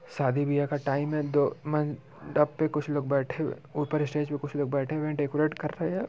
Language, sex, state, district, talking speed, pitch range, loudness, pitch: Hindi, male, Bihar, Muzaffarpur, 235 wpm, 145-150 Hz, -29 LUFS, 150 Hz